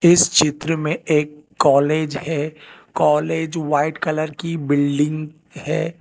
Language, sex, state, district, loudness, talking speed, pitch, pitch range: Hindi, male, Telangana, Hyderabad, -19 LUFS, 120 wpm, 155 Hz, 150-160 Hz